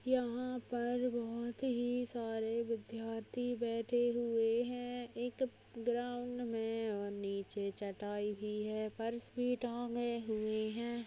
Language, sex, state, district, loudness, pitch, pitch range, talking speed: Hindi, female, Goa, North and South Goa, -39 LUFS, 235 Hz, 220-245 Hz, 120 wpm